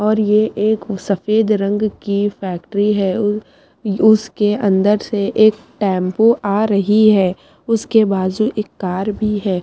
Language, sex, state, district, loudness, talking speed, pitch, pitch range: Hindi, female, Haryana, Charkhi Dadri, -16 LUFS, 130 wpm, 210 Hz, 200-215 Hz